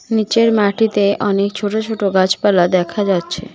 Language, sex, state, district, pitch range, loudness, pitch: Bengali, female, West Bengal, Cooch Behar, 190-220 Hz, -15 LUFS, 205 Hz